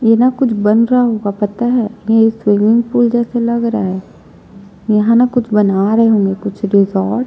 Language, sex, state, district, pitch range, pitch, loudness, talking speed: Hindi, female, Chhattisgarh, Jashpur, 205-235 Hz, 225 Hz, -13 LUFS, 200 wpm